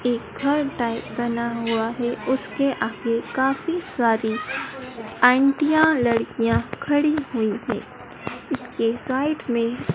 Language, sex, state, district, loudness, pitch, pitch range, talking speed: Hindi, female, Madhya Pradesh, Dhar, -23 LUFS, 245 Hz, 230-275 Hz, 110 wpm